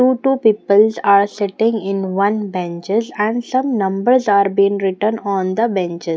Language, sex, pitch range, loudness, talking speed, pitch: English, female, 195-225 Hz, -16 LUFS, 165 wpm, 205 Hz